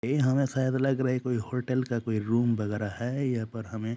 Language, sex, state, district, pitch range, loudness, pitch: Hindi, male, Jharkhand, Jamtara, 115-130 Hz, -29 LUFS, 120 Hz